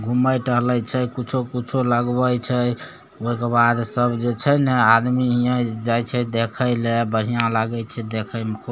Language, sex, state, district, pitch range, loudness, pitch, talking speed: Maithili, male, Bihar, Samastipur, 115-125 Hz, -20 LUFS, 120 Hz, 170 wpm